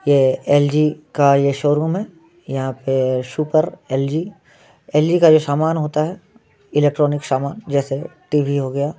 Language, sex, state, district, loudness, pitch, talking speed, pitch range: Hindi, male, Bihar, Muzaffarpur, -18 LUFS, 145 Hz, 140 wpm, 140-155 Hz